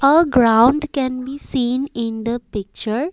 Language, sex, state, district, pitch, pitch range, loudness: English, female, Assam, Kamrup Metropolitan, 255 Hz, 230-275 Hz, -18 LUFS